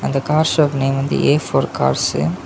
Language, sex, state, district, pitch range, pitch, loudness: Tamil, male, Tamil Nadu, Kanyakumari, 135-150 Hz, 140 Hz, -17 LUFS